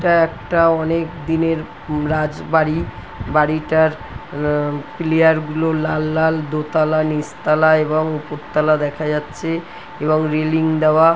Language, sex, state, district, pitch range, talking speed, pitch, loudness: Bengali, female, West Bengal, North 24 Parganas, 150-160 Hz, 100 wpm, 155 Hz, -18 LUFS